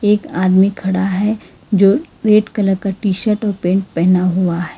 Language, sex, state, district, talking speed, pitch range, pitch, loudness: Hindi, female, Karnataka, Bangalore, 190 wpm, 185-210 Hz, 195 Hz, -15 LUFS